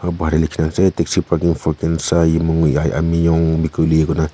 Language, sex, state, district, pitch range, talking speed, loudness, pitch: Nagamese, male, Nagaland, Kohima, 80-85 Hz, 150 wpm, -16 LUFS, 80 Hz